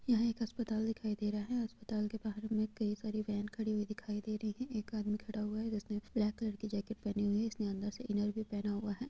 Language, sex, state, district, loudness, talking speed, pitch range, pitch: Hindi, female, Jharkhand, Sahebganj, -38 LUFS, 275 wpm, 210-220 Hz, 215 Hz